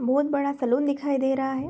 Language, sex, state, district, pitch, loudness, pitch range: Hindi, female, Bihar, Begusarai, 275 Hz, -25 LUFS, 265-280 Hz